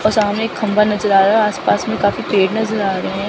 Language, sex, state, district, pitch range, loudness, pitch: Hindi, female, Chandigarh, Chandigarh, 200-220 Hz, -16 LUFS, 210 Hz